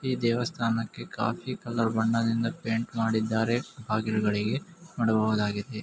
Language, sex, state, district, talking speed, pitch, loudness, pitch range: Kannada, male, Karnataka, Mysore, 95 wpm, 115 Hz, -28 LUFS, 110-120 Hz